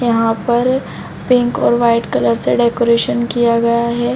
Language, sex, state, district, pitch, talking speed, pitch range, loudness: Hindi, female, Chhattisgarh, Bilaspur, 235 Hz, 160 wpm, 230-240 Hz, -14 LUFS